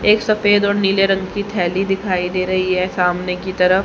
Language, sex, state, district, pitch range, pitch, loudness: Hindi, female, Haryana, Charkhi Dadri, 185-200 Hz, 190 Hz, -17 LUFS